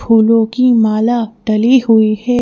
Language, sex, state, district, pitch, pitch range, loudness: Hindi, female, Madhya Pradesh, Bhopal, 225 Hz, 220-240 Hz, -12 LUFS